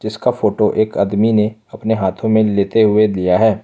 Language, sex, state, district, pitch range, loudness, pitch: Hindi, male, Jharkhand, Ranchi, 100-110 Hz, -15 LUFS, 110 Hz